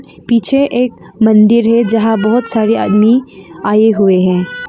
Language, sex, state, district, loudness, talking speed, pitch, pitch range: Hindi, female, Arunachal Pradesh, Longding, -11 LUFS, 140 wpm, 220 Hz, 190-235 Hz